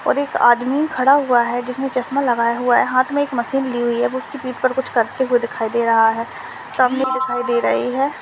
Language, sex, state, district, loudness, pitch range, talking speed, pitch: Hindi, female, Maharashtra, Chandrapur, -18 LUFS, 240-265 Hz, 240 wpm, 255 Hz